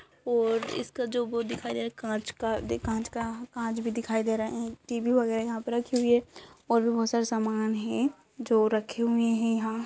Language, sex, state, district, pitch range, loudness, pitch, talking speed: Hindi, female, Uttar Pradesh, Etah, 225-235 Hz, -29 LUFS, 230 Hz, 245 wpm